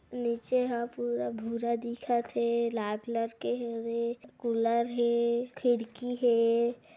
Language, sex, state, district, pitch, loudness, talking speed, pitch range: Hindi, female, Chhattisgarh, Kabirdham, 235 Hz, -31 LUFS, 120 wpm, 230-240 Hz